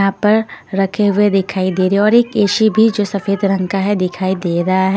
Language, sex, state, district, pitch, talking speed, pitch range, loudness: Hindi, female, Haryana, Rohtak, 195 Hz, 255 wpm, 190-205 Hz, -15 LUFS